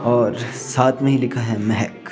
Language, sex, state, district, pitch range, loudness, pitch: Hindi, male, Himachal Pradesh, Shimla, 115-130 Hz, -20 LUFS, 120 Hz